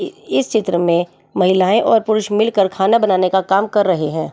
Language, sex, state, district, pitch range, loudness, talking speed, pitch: Hindi, female, Delhi, New Delhi, 185-220 Hz, -16 LUFS, 195 wpm, 195 Hz